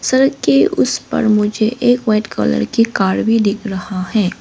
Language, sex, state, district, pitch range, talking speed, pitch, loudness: Hindi, female, Arunachal Pradesh, Lower Dibang Valley, 180-230 Hz, 190 wpm, 210 Hz, -15 LUFS